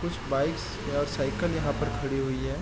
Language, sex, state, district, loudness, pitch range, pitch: Hindi, male, Bihar, East Champaran, -29 LUFS, 130-145 Hz, 135 Hz